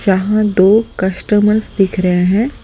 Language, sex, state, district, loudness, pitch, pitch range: Hindi, male, Delhi, New Delhi, -13 LUFS, 200 Hz, 190-215 Hz